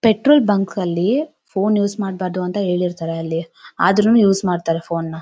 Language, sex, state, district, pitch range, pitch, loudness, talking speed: Kannada, female, Karnataka, Bellary, 170-205 Hz, 190 Hz, -18 LUFS, 170 wpm